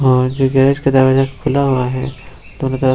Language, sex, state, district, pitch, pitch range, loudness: Hindi, male, Bihar, Muzaffarpur, 135 Hz, 130-135 Hz, -15 LUFS